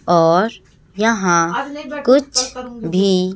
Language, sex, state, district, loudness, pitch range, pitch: Hindi, female, Chhattisgarh, Raipur, -16 LUFS, 180-255 Hz, 225 Hz